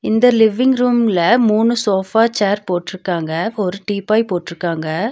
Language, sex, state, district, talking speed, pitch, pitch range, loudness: Tamil, female, Tamil Nadu, Nilgiris, 115 wpm, 210 Hz, 180-225 Hz, -16 LUFS